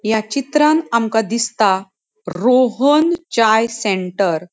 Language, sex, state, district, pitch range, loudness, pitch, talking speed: Konkani, female, Goa, North and South Goa, 205-270 Hz, -16 LUFS, 225 Hz, 105 wpm